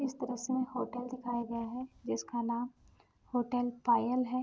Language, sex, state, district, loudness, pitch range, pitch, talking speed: Hindi, female, Bihar, Sitamarhi, -35 LUFS, 235-255 Hz, 245 Hz, 165 wpm